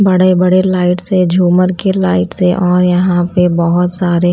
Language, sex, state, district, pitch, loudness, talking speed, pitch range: Hindi, female, Odisha, Malkangiri, 180 Hz, -12 LUFS, 180 wpm, 175-185 Hz